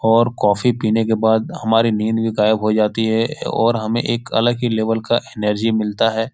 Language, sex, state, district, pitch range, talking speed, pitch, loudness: Hindi, male, Bihar, Jahanabad, 110-115 Hz, 210 wpm, 115 Hz, -18 LUFS